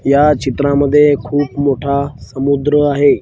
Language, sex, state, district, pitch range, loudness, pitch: Marathi, male, Maharashtra, Washim, 140-145 Hz, -14 LUFS, 140 Hz